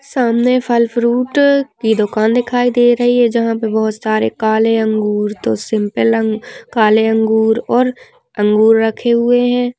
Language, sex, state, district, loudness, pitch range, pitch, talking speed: Hindi, female, Uttarakhand, Tehri Garhwal, -14 LUFS, 220-245 Hz, 230 Hz, 145 wpm